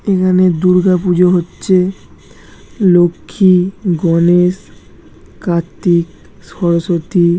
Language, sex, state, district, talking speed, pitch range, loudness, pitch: Bengali, male, West Bengal, Jhargram, 65 wpm, 170-185 Hz, -13 LUFS, 180 Hz